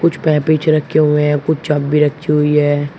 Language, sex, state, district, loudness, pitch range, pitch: Hindi, male, Uttar Pradesh, Shamli, -14 LUFS, 150-155 Hz, 150 Hz